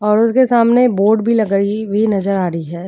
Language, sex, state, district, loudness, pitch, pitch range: Hindi, female, Uttar Pradesh, Jyotiba Phule Nagar, -14 LUFS, 210 Hz, 195-230 Hz